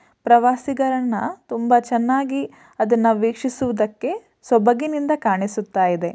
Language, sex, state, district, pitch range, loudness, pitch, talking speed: Kannada, female, Karnataka, Shimoga, 225-265 Hz, -20 LUFS, 240 Hz, 70 wpm